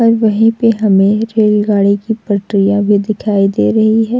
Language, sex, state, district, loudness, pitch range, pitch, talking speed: Hindi, female, Uttar Pradesh, Jalaun, -12 LUFS, 200-225 Hz, 210 Hz, 170 wpm